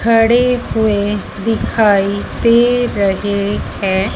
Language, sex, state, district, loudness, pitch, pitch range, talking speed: Hindi, female, Madhya Pradesh, Dhar, -14 LUFS, 210 Hz, 200-230 Hz, 85 wpm